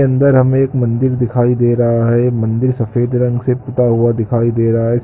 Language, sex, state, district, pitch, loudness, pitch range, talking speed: Hindi, male, Chhattisgarh, Korba, 120 Hz, -14 LUFS, 115-125 Hz, 215 wpm